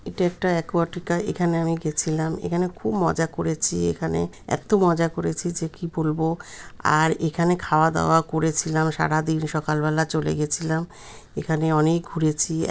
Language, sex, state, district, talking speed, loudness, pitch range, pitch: Bengali, male, West Bengal, Kolkata, 155 wpm, -23 LUFS, 155-170 Hz, 160 Hz